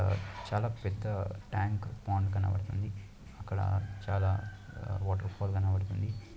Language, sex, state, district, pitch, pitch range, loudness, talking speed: Telugu, male, Andhra Pradesh, Anantapur, 100 Hz, 95-105 Hz, -34 LUFS, 95 wpm